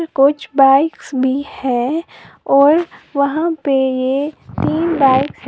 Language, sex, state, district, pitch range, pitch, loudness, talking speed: Hindi, female, Uttar Pradesh, Lalitpur, 265-310 Hz, 280 Hz, -15 LUFS, 120 wpm